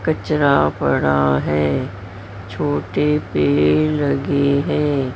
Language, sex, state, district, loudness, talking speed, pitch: Hindi, female, Maharashtra, Mumbai Suburban, -18 LUFS, 80 wpm, 100 Hz